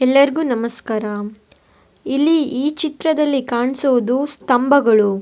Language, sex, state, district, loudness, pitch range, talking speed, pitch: Kannada, female, Karnataka, Bellary, -17 LUFS, 235-290 Hz, 80 wpm, 260 Hz